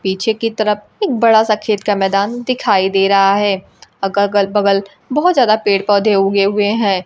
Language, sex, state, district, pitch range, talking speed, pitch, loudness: Hindi, female, Bihar, Kaimur, 195-220 Hz, 195 wpm, 205 Hz, -14 LUFS